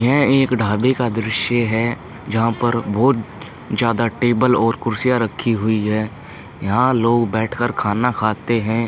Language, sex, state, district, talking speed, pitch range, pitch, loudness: Hindi, male, Uttar Pradesh, Hamirpur, 155 wpm, 110-120 Hz, 115 Hz, -18 LUFS